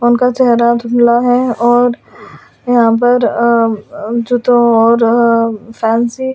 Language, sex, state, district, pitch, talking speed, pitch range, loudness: Hindi, female, Delhi, New Delhi, 235 Hz, 105 wpm, 230-245 Hz, -11 LUFS